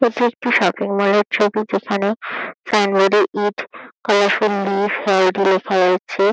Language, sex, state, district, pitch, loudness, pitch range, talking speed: Bengali, female, West Bengal, Kolkata, 205 Hz, -17 LUFS, 195-210 Hz, 135 wpm